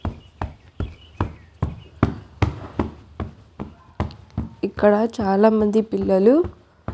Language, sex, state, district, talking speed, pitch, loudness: Telugu, female, Andhra Pradesh, Annamaya, 35 wpm, 190 Hz, -21 LUFS